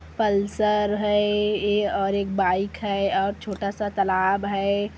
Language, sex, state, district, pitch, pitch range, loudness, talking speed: Hindi, female, Chhattisgarh, Kabirdham, 200 Hz, 195-210 Hz, -23 LUFS, 135 wpm